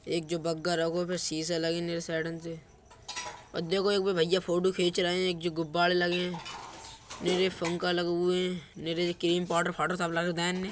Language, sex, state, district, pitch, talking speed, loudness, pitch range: Bundeli, male, Uttar Pradesh, Budaun, 175 Hz, 200 wpm, -30 LUFS, 170-180 Hz